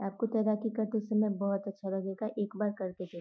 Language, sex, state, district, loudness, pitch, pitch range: Hindi, female, Uttar Pradesh, Gorakhpur, -33 LUFS, 205 Hz, 195-215 Hz